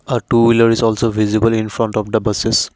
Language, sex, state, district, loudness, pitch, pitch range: English, male, Assam, Kamrup Metropolitan, -15 LUFS, 115 Hz, 110-115 Hz